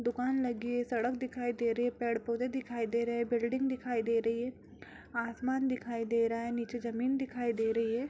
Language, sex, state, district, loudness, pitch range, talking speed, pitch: Hindi, female, Bihar, Purnia, -34 LUFS, 230-250 Hz, 215 wpm, 235 Hz